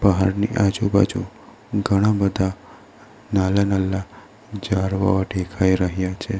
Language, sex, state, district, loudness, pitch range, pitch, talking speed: Gujarati, male, Gujarat, Valsad, -21 LUFS, 95-100 Hz, 100 Hz, 85 wpm